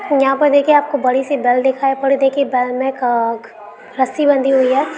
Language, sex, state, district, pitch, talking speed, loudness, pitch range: Hindi, male, Uttar Pradesh, Ghazipur, 270 Hz, 205 wpm, -15 LUFS, 250-280 Hz